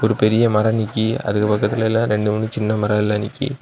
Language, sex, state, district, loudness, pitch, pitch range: Tamil, male, Tamil Nadu, Kanyakumari, -19 LUFS, 110 Hz, 105-110 Hz